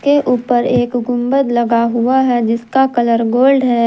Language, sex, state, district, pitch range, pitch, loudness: Hindi, female, Jharkhand, Garhwa, 235-260 Hz, 245 Hz, -14 LUFS